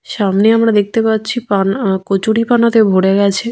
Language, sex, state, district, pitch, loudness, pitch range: Bengali, female, West Bengal, Jhargram, 215 Hz, -13 LUFS, 195-225 Hz